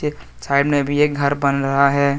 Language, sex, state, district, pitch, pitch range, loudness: Hindi, male, Jharkhand, Deoghar, 140 Hz, 140-145 Hz, -18 LUFS